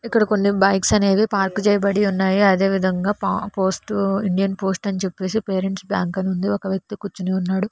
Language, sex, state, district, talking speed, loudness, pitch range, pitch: Telugu, female, Telangana, Hyderabad, 180 wpm, -20 LUFS, 190-205 Hz, 195 Hz